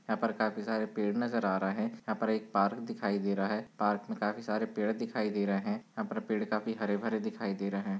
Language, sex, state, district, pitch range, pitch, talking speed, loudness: Hindi, male, Bihar, Bhagalpur, 100-110 Hz, 105 Hz, 265 wpm, -33 LUFS